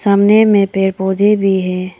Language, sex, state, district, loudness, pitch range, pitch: Hindi, female, Arunachal Pradesh, Papum Pare, -13 LUFS, 190-205 Hz, 195 Hz